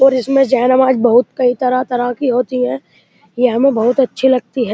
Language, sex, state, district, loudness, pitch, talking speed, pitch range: Hindi, male, Uttar Pradesh, Muzaffarnagar, -14 LUFS, 250 Hz, 190 wpm, 245-260 Hz